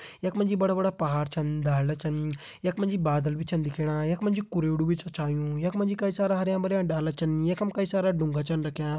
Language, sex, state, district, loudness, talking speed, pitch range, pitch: Hindi, male, Uttarakhand, Uttarkashi, -28 LUFS, 215 wpm, 150-190 Hz, 160 Hz